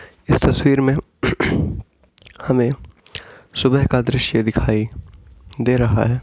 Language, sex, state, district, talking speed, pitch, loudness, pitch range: Hindi, male, Uttar Pradesh, Etah, 115 wpm, 120 Hz, -18 LUFS, 110-130 Hz